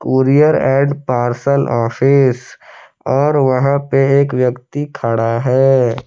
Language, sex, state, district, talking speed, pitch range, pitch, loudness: Hindi, male, Jharkhand, Palamu, 110 wpm, 125-140 Hz, 135 Hz, -14 LUFS